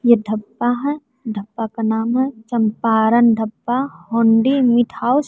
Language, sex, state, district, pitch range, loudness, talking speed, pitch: Hindi, female, Bihar, West Champaran, 220-250 Hz, -18 LUFS, 145 wpm, 235 Hz